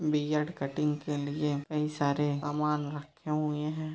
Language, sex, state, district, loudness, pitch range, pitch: Hindi, male, Uttar Pradesh, Jyotiba Phule Nagar, -32 LUFS, 145-150 Hz, 150 Hz